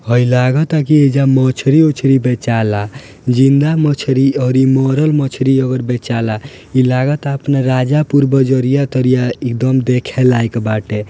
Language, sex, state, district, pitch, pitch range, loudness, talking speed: Bhojpuri, male, Bihar, Gopalganj, 130 Hz, 125-140 Hz, -13 LUFS, 135 wpm